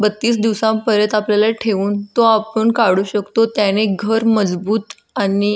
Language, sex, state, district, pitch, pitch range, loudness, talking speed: Marathi, female, Maharashtra, Solapur, 215 Hz, 205-225 Hz, -16 LUFS, 150 wpm